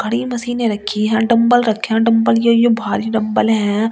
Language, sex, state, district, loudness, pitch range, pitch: Hindi, female, Delhi, New Delhi, -15 LUFS, 220-235 Hz, 225 Hz